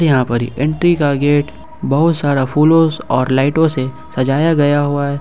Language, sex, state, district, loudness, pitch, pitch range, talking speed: Hindi, male, Jharkhand, Ranchi, -14 LUFS, 145 Hz, 135-155 Hz, 185 wpm